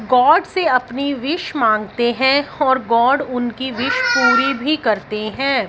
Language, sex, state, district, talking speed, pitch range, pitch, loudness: Hindi, female, Punjab, Fazilka, 145 wpm, 235-280 Hz, 260 Hz, -17 LUFS